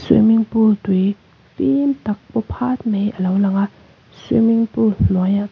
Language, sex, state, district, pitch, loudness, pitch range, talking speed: Mizo, female, Mizoram, Aizawl, 215 Hz, -17 LUFS, 200-230 Hz, 185 wpm